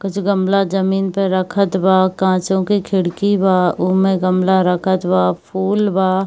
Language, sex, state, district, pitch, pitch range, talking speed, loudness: Hindi, female, Bihar, Kishanganj, 190 Hz, 185-195 Hz, 165 wpm, -16 LUFS